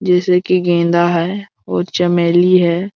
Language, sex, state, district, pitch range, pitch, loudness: Hindi, male, Jharkhand, Jamtara, 170-180 Hz, 175 Hz, -14 LUFS